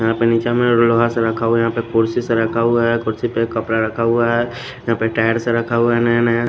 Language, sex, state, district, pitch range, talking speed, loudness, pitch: Hindi, male, Maharashtra, Washim, 115-120 Hz, 285 wpm, -17 LUFS, 115 Hz